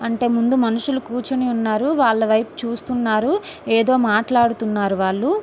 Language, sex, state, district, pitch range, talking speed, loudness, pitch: Telugu, female, Andhra Pradesh, Srikakulam, 220-255 Hz, 120 wpm, -19 LUFS, 235 Hz